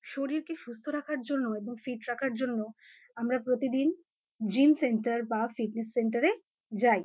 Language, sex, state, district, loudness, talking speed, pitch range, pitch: Bengali, female, West Bengal, North 24 Parganas, -31 LUFS, 145 wpm, 230-280 Hz, 250 Hz